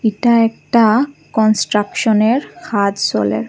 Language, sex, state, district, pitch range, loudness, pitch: Bengali, female, Assam, Hailakandi, 200-235 Hz, -15 LUFS, 220 Hz